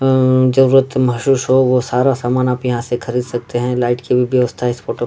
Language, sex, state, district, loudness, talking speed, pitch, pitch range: Hindi, male, Bihar, Darbhanga, -15 LUFS, 235 wpm, 125 Hz, 120-130 Hz